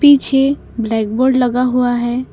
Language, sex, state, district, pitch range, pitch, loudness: Hindi, female, Assam, Kamrup Metropolitan, 240-265 Hz, 250 Hz, -15 LUFS